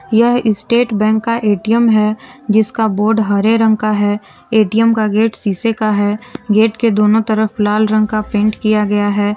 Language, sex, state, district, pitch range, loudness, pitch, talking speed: Hindi, female, Jharkhand, Garhwa, 210-225 Hz, -14 LUFS, 215 Hz, 185 wpm